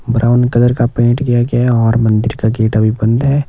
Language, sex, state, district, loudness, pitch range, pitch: Hindi, male, Himachal Pradesh, Shimla, -13 LUFS, 110-120 Hz, 120 Hz